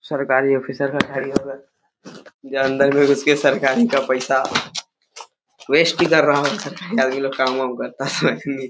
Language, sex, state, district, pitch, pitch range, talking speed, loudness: Hindi, male, Jharkhand, Jamtara, 135 Hz, 135-145 Hz, 160 wpm, -19 LUFS